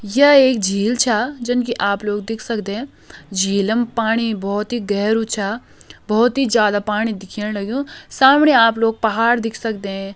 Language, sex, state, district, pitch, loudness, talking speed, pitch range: Hindi, female, Uttarakhand, Uttarkashi, 220 Hz, -17 LUFS, 165 wpm, 205-240 Hz